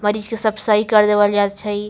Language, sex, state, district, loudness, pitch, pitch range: Maithili, female, Bihar, Samastipur, -17 LUFS, 210 Hz, 205-215 Hz